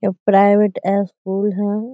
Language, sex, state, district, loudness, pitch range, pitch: Hindi, female, Bihar, Sitamarhi, -17 LUFS, 195-205 Hz, 200 Hz